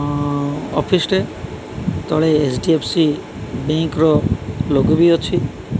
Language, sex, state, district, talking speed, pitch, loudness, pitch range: Odia, male, Odisha, Malkangiri, 95 wpm, 150 Hz, -18 LUFS, 140-160 Hz